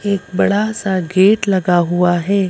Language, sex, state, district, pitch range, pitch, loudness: Hindi, female, Madhya Pradesh, Bhopal, 180-200 Hz, 190 Hz, -15 LUFS